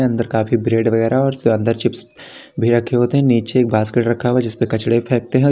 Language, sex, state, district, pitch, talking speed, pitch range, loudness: Hindi, male, Uttar Pradesh, Lalitpur, 120 Hz, 240 wpm, 115-125 Hz, -17 LUFS